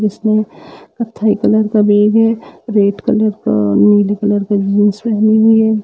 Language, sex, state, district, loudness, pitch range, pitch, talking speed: Hindi, male, Uttar Pradesh, Budaun, -13 LUFS, 205-220 Hz, 215 Hz, 165 wpm